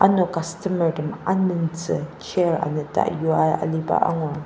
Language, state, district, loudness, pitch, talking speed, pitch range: Ao, Nagaland, Dimapur, -22 LUFS, 165 Hz, 120 wpm, 155-175 Hz